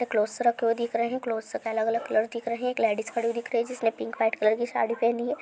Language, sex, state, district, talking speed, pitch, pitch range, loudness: Hindi, female, Andhra Pradesh, Visakhapatnam, 320 wpm, 230 Hz, 225-235 Hz, -27 LUFS